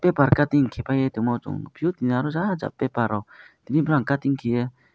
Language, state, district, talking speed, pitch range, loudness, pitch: Kokborok, Tripura, West Tripura, 205 wpm, 125-150 Hz, -23 LUFS, 140 Hz